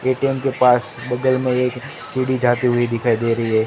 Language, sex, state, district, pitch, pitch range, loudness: Hindi, male, Gujarat, Gandhinagar, 125 Hz, 120-130 Hz, -19 LUFS